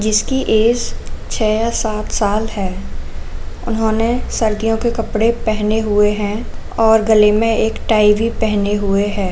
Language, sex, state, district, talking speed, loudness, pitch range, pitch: Hindi, female, Uttar Pradesh, Jalaun, 150 wpm, -16 LUFS, 205-225 Hz, 215 Hz